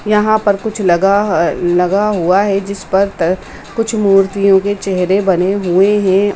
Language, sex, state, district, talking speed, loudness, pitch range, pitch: Hindi, female, Bihar, Supaul, 150 wpm, -13 LUFS, 190-205 Hz, 195 Hz